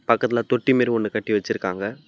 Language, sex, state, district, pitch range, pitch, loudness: Tamil, male, Tamil Nadu, Namakkal, 105-125 Hz, 115 Hz, -22 LUFS